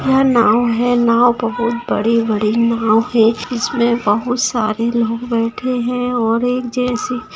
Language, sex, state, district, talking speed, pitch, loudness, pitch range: Hindi, female, Bihar, Begusarai, 145 wpm, 235 Hz, -16 LUFS, 230-245 Hz